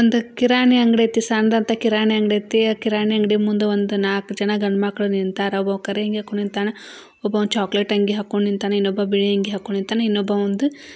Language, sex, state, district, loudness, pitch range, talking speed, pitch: Kannada, female, Karnataka, Belgaum, -20 LUFS, 200-220 Hz, 185 wpm, 210 Hz